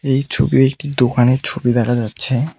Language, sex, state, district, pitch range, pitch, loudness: Bengali, male, West Bengal, Cooch Behar, 120-135 Hz, 130 Hz, -16 LUFS